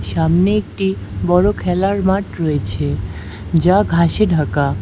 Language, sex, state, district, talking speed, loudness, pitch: Bengali, female, West Bengal, Alipurduar, 110 wpm, -17 LUFS, 160 Hz